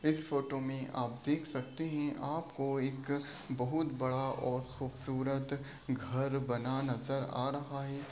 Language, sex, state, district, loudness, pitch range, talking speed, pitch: Hindi, male, Bihar, Begusarai, -37 LUFS, 130-140 Hz, 140 wpm, 135 Hz